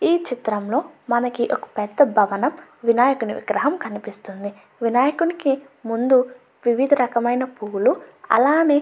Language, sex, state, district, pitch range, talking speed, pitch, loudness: Telugu, female, Andhra Pradesh, Guntur, 230-275 Hz, 125 wpm, 245 Hz, -21 LUFS